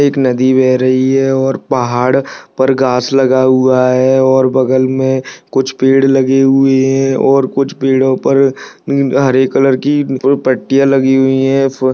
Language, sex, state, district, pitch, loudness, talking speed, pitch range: Hindi, male, Uttarakhand, Tehri Garhwal, 130 Hz, -11 LUFS, 165 wpm, 130-135 Hz